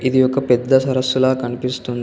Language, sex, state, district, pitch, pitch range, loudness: Telugu, male, Telangana, Komaram Bheem, 130 Hz, 125-130 Hz, -17 LUFS